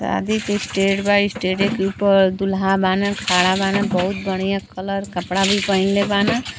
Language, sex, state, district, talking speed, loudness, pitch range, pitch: Bhojpuri, female, Uttar Pradesh, Gorakhpur, 165 wpm, -19 LUFS, 190-200 Hz, 195 Hz